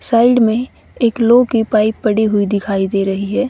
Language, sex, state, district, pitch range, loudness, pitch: Hindi, female, Haryana, Rohtak, 205-240 Hz, -14 LUFS, 220 Hz